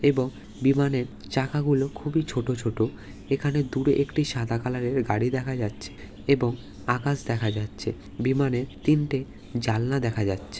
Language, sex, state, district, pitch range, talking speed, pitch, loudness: Bengali, male, West Bengal, North 24 Parganas, 110-135 Hz, 135 wpm, 125 Hz, -26 LUFS